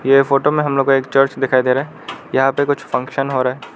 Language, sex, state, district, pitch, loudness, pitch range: Hindi, male, Arunachal Pradesh, Lower Dibang Valley, 135 Hz, -16 LUFS, 130-140 Hz